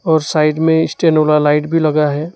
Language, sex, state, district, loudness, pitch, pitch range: Hindi, male, West Bengal, Alipurduar, -14 LUFS, 155 Hz, 150-160 Hz